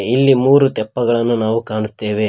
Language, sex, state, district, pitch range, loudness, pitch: Kannada, male, Karnataka, Koppal, 110-125 Hz, -15 LUFS, 115 Hz